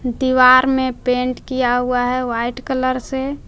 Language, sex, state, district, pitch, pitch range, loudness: Hindi, female, Jharkhand, Palamu, 255 Hz, 245-260 Hz, -17 LUFS